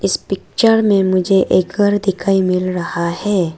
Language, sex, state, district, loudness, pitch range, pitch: Hindi, female, Arunachal Pradesh, Lower Dibang Valley, -15 LUFS, 180-205 Hz, 190 Hz